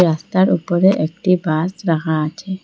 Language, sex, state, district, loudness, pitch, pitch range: Bengali, female, Assam, Hailakandi, -17 LUFS, 175 Hz, 160-190 Hz